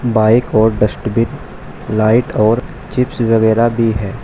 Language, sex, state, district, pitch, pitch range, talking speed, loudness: Hindi, male, Uttar Pradesh, Shamli, 115 Hz, 110-120 Hz, 125 wpm, -14 LUFS